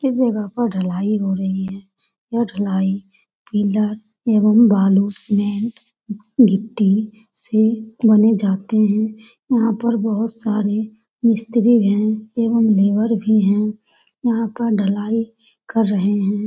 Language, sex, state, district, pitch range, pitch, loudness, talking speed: Hindi, female, Bihar, Lakhisarai, 205-230 Hz, 215 Hz, -18 LUFS, 135 wpm